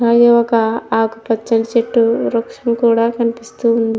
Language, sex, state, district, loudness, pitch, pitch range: Telugu, female, Andhra Pradesh, Krishna, -15 LUFS, 230 Hz, 225-235 Hz